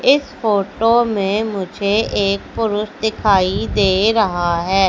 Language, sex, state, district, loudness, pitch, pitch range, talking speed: Hindi, female, Madhya Pradesh, Katni, -17 LUFS, 205 Hz, 195-220 Hz, 125 wpm